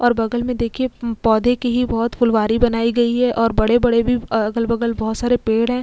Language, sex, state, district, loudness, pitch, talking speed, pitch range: Hindi, female, Uttar Pradesh, Jyotiba Phule Nagar, -18 LUFS, 235 Hz, 215 wpm, 230-245 Hz